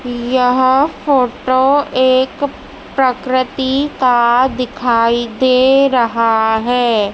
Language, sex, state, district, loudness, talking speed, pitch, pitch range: Hindi, female, Madhya Pradesh, Dhar, -14 LUFS, 75 wpm, 255 Hz, 240-265 Hz